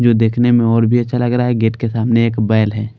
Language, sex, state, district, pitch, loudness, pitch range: Hindi, male, Haryana, Charkhi Dadri, 115 Hz, -15 LUFS, 110-120 Hz